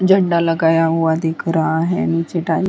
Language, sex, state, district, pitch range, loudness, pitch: Hindi, female, Uttarakhand, Tehri Garhwal, 160-170 Hz, -17 LUFS, 165 Hz